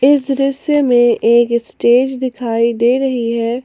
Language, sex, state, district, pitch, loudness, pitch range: Hindi, female, Jharkhand, Palamu, 245 Hz, -14 LUFS, 235-270 Hz